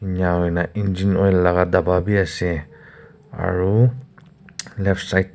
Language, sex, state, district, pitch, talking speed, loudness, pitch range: Nagamese, male, Nagaland, Kohima, 95 Hz, 145 wpm, -19 LUFS, 90-105 Hz